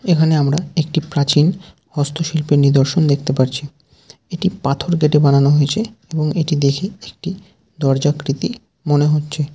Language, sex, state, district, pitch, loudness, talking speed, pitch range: Bengali, male, West Bengal, Jalpaiguri, 150 Hz, -17 LUFS, 140 wpm, 145-165 Hz